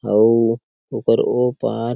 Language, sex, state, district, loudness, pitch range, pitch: Chhattisgarhi, male, Chhattisgarh, Sarguja, -18 LUFS, 115-120 Hz, 115 Hz